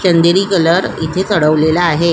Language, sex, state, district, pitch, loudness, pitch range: Marathi, female, Maharashtra, Solapur, 170 Hz, -13 LUFS, 160-185 Hz